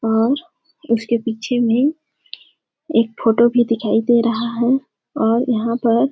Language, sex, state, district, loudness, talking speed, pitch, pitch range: Hindi, female, Chhattisgarh, Sarguja, -18 LUFS, 145 wpm, 235 Hz, 230-250 Hz